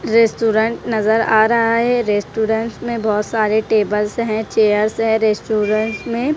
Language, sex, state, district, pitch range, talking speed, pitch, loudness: Hindi, female, Punjab, Kapurthala, 215-230 Hz, 150 wpm, 220 Hz, -17 LUFS